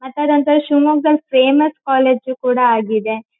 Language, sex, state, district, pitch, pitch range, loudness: Kannada, female, Karnataka, Shimoga, 265 Hz, 250-295 Hz, -15 LUFS